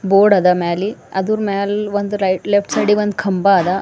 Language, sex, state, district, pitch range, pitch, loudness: Kannada, female, Karnataka, Bidar, 190-205 Hz, 200 Hz, -16 LUFS